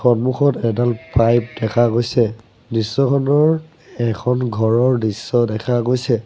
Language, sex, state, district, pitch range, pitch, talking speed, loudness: Assamese, male, Assam, Sonitpur, 115-130 Hz, 120 Hz, 105 wpm, -18 LUFS